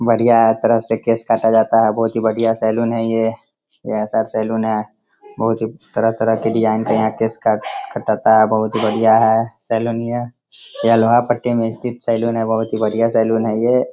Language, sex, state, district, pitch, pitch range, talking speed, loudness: Hindi, male, Bihar, Sitamarhi, 115 Hz, 110-115 Hz, 205 wpm, -17 LUFS